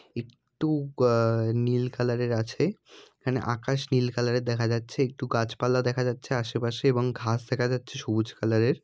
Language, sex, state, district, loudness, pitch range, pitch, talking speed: Bengali, female, West Bengal, Jalpaiguri, -27 LUFS, 115-130 Hz, 125 Hz, 170 wpm